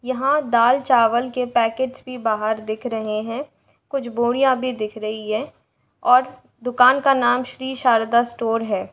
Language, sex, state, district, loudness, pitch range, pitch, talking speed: Hindi, female, Uttar Pradesh, Jalaun, -20 LUFS, 225-255 Hz, 245 Hz, 160 wpm